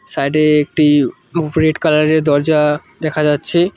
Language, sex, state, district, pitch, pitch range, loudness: Bengali, male, West Bengal, Cooch Behar, 155 Hz, 150-155 Hz, -14 LUFS